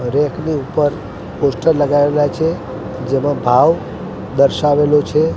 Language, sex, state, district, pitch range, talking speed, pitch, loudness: Gujarati, male, Gujarat, Gandhinagar, 135-150 Hz, 110 wpm, 145 Hz, -15 LUFS